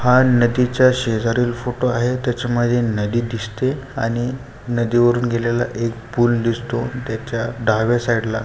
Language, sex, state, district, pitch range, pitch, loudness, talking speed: Marathi, male, Maharashtra, Pune, 115-125 Hz, 120 Hz, -19 LUFS, 130 wpm